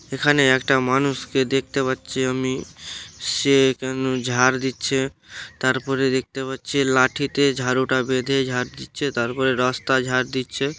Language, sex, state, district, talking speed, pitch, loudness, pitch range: Bengali, male, West Bengal, Dakshin Dinajpur, 120 wpm, 130 Hz, -21 LUFS, 130-135 Hz